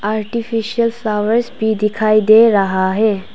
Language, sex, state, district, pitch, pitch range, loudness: Hindi, female, Arunachal Pradesh, Papum Pare, 215 Hz, 210-225 Hz, -15 LUFS